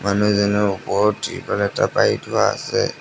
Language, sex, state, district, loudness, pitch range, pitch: Assamese, male, Assam, Sonitpur, -19 LUFS, 100-105 Hz, 100 Hz